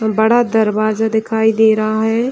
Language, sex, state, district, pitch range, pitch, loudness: Hindi, female, Bihar, Jahanabad, 220-225 Hz, 220 Hz, -14 LUFS